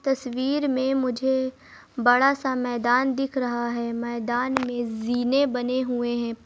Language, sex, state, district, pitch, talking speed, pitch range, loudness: Hindi, male, Uttar Pradesh, Lucknow, 250 Hz, 130 wpm, 240-265 Hz, -24 LUFS